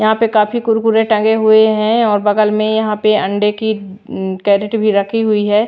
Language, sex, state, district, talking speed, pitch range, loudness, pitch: Hindi, female, Bihar, Patna, 200 wpm, 210-220 Hz, -14 LUFS, 215 Hz